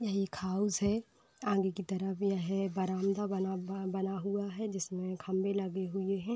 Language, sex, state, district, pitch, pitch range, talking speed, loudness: Hindi, female, Uttar Pradesh, Varanasi, 195 Hz, 190-200 Hz, 180 wpm, -35 LUFS